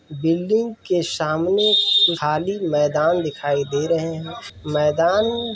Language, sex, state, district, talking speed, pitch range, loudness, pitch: Hindi, male, Uttar Pradesh, Varanasi, 120 wpm, 150-205 Hz, -19 LUFS, 165 Hz